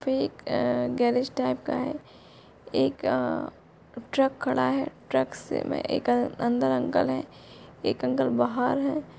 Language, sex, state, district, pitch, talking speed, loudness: Hindi, female, Chhattisgarh, Korba, 235 Hz, 145 wpm, -27 LUFS